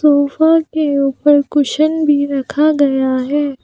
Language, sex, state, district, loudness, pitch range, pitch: Hindi, female, Arunachal Pradesh, Papum Pare, -14 LUFS, 275-305 Hz, 290 Hz